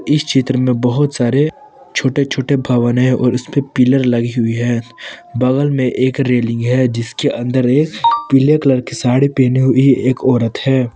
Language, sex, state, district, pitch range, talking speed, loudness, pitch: Hindi, male, Jharkhand, Palamu, 125-140 Hz, 175 wpm, -14 LUFS, 130 Hz